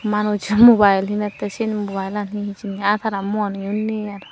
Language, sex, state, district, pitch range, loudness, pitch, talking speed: Chakma, female, Tripura, Unakoti, 200-210 Hz, -19 LUFS, 205 Hz, 180 wpm